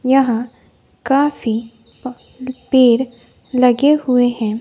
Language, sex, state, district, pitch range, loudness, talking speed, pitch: Hindi, female, Bihar, West Champaran, 240-265 Hz, -15 LUFS, 90 wpm, 250 Hz